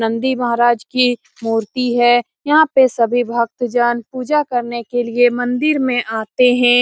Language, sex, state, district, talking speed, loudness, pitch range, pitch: Hindi, female, Bihar, Saran, 150 wpm, -16 LUFS, 235-255 Hz, 245 Hz